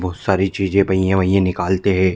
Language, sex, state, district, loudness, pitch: Hindi, male, Chhattisgarh, Bilaspur, -17 LUFS, 95 Hz